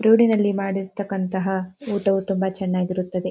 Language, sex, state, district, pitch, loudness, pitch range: Kannada, female, Karnataka, Dharwad, 195 Hz, -22 LUFS, 185-200 Hz